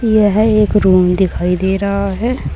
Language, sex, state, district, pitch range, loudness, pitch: Hindi, female, Uttar Pradesh, Saharanpur, 190-215 Hz, -13 LUFS, 200 Hz